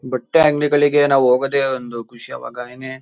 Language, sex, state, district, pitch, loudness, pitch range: Kannada, male, Karnataka, Shimoga, 130 Hz, -16 LUFS, 125-145 Hz